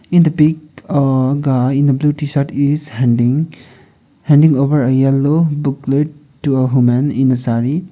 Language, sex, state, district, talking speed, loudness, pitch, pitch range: English, male, Sikkim, Gangtok, 165 wpm, -14 LUFS, 140 Hz, 130-150 Hz